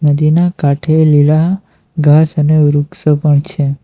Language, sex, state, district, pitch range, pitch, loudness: Gujarati, male, Gujarat, Valsad, 145-160 Hz, 150 Hz, -11 LUFS